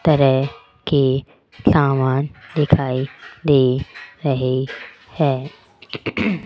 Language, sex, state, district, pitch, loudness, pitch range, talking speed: Hindi, female, Rajasthan, Jaipur, 135 Hz, -19 LUFS, 130-150 Hz, 65 wpm